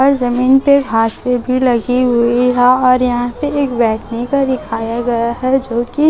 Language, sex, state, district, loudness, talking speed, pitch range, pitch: Hindi, female, Chhattisgarh, Raipur, -14 LUFS, 175 wpm, 240-260 Hz, 250 Hz